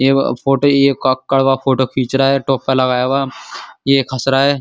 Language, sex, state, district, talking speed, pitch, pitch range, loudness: Hindi, male, Uttar Pradesh, Muzaffarnagar, 210 wpm, 135 Hz, 130-135 Hz, -15 LUFS